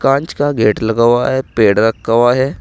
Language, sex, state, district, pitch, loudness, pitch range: Hindi, male, Uttar Pradesh, Saharanpur, 120 Hz, -13 LUFS, 115-135 Hz